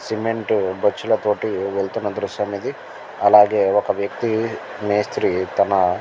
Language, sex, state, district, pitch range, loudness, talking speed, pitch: Telugu, male, Andhra Pradesh, Guntur, 100-110 Hz, -20 LUFS, 110 wpm, 105 Hz